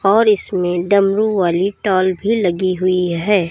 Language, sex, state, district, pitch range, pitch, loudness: Hindi, female, Uttar Pradesh, Lalitpur, 180-205 Hz, 190 Hz, -16 LUFS